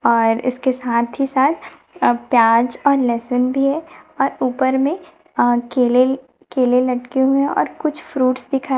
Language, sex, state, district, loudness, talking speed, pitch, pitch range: Hindi, female, Chhattisgarh, Raipur, -18 LUFS, 155 wpm, 260 Hz, 245-275 Hz